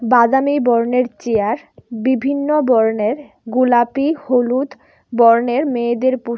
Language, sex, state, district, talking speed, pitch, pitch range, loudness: Bengali, female, Tripura, West Tripura, 95 wpm, 250 Hz, 235-270 Hz, -16 LUFS